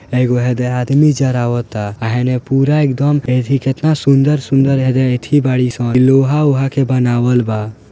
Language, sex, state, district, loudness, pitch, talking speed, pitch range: Bhojpuri, male, Bihar, Gopalganj, -14 LUFS, 130 Hz, 180 wpm, 125-135 Hz